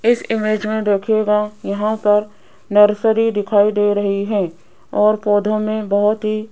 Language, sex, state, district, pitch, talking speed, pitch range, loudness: Hindi, female, Rajasthan, Jaipur, 210 Hz, 155 wpm, 205-215 Hz, -17 LUFS